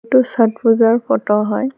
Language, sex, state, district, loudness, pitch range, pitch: Assamese, female, Assam, Hailakandi, -15 LUFS, 220-255 Hz, 230 Hz